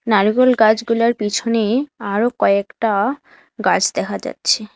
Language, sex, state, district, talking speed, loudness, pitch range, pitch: Bengali, female, West Bengal, Alipurduar, 100 wpm, -17 LUFS, 210-240 Hz, 225 Hz